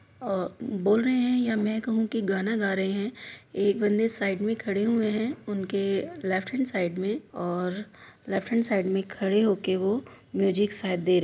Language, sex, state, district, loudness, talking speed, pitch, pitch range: Hindi, female, Uttar Pradesh, Hamirpur, -27 LUFS, 190 wpm, 205 Hz, 195-225 Hz